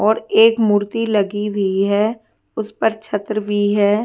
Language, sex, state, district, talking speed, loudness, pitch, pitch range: Hindi, female, Punjab, Fazilka, 150 wpm, -17 LUFS, 210 Hz, 205-220 Hz